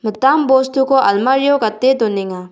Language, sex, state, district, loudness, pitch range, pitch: Garo, female, Meghalaya, South Garo Hills, -14 LUFS, 210-270 Hz, 260 Hz